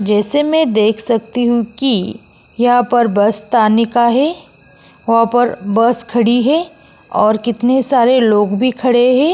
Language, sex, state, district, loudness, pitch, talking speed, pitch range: Hindi, female, Uttar Pradesh, Jyotiba Phule Nagar, -13 LUFS, 240 Hz, 155 wpm, 225-255 Hz